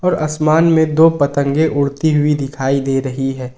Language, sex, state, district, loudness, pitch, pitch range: Hindi, male, Jharkhand, Ranchi, -15 LUFS, 145 Hz, 135-160 Hz